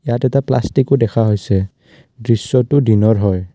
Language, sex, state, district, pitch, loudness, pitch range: Assamese, male, Assam, Kamrup Metropolitan, 115 Hz, -15 LUFS, 105-130 Hz